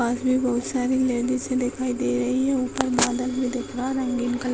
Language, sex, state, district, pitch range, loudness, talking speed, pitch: Hindi, female, Bihar, Sitamarhi, 245-255 Hz, -24 LUFS, 240 wpm, 250 Hz